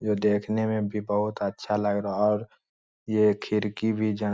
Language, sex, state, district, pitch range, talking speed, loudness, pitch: Magahi, male, Bihar, Lakhisarai, 105-110 Hz, 195 wpm, -26 LUFS, 105 Hz